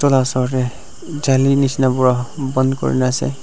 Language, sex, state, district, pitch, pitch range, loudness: Nagamese, male, Nagaland, Dimapur, 130 Hz, 125-135 Hz, -17 LUFS